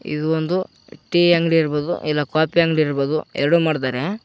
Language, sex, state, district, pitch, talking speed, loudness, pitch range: Kannada, male, Karnataka, Koppal, 160 Hz, 155 wpm, -19 LUFS, 150-170 Hz